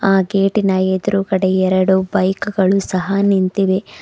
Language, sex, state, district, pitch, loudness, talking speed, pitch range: Kannada, female, Karnataka, Bidar, 195 Hz, -16 LUFS, 120 wpm, 190-195 Hz